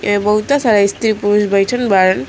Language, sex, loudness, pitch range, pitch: Bhojpuri, female, -14 LUFS, 200-215 Hz, 205 Hz